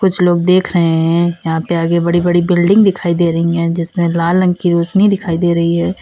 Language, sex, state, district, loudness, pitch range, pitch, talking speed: Hindi, female, Uttar Pradesh, Lalitpur, -13 LUFS, 170-180 Hz, 175 Hz, 240 wpm